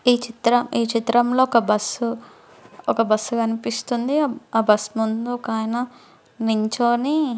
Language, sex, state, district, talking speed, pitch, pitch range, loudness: Telugu, female, Andhra Pradesh, Guntur, 120 wpm, 235 Hz, 225-245 Hz, -21 LUFS